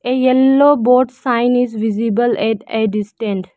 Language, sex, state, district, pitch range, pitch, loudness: English, female, Arunachal Pradesh, Lower Dibang Valley, 220-255 Hz, 240 Hz, -15 LUFS